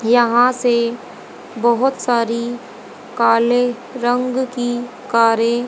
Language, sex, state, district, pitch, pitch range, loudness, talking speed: Hindi, female, Haryana, Jhajjar, 240 Hz, 235-245 Hz, -17 LUFS, 95 wpm